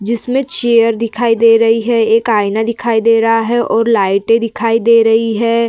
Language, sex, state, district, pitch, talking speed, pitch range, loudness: Hindi, female, Uttar Pradesh, Varanasi, 230 Hz, 190 wpm, 225-235 Hz, -12 LUFS